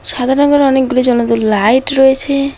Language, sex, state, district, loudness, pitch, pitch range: Bengali, female, West Bengal, Alipurduar, -11 LUFS, 265 Hz, 245-275 Hz